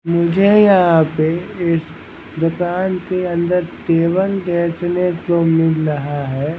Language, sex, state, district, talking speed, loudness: Hindi, male, Bihar, Patna, 120 wpm, -16 LUFS